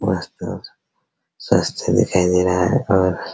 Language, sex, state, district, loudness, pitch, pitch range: Hindi, male, Bihar, Araria, -19 LUFS, 90 Hz, 90-95 Hz